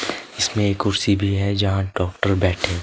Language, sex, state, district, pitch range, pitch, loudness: Hindi, male, Himachal Pradesh, Shimla, 95-100 Hz, 100 Hz, -21 LUFS